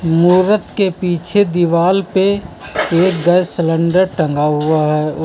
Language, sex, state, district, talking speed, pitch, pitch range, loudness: Hindi, male, Uttar Pradesh, Lucknow, 135 wpm, 175 Hz, 165-185 Hz, -14 LUFS